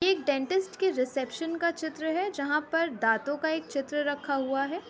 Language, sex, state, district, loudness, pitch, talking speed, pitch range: Hindi, female, Uttar Pradesh, Etah, -29 LUFS, 300 Hz, 195 wpm, 275-335 Hz